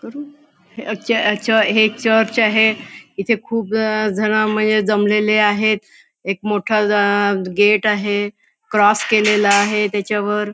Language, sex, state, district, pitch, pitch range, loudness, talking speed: Marathi, female, Maharashtra, Nagpur, 210 Hz, 205-220 Hz, -16 LUFS, 130 wpm